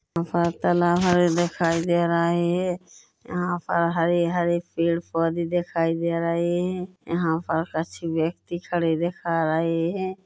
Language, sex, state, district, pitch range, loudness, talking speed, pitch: Hindi, female, Chhattisgarh, Korba, 165-175 Hz, -24 LUFS, 140 wpm, 170 Hz